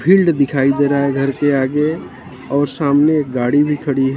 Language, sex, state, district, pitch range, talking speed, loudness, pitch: Hindi, male, Haryana, Jhajjar, 135-150 Hz, 200 wpm, -15 LUFS, 140 Hz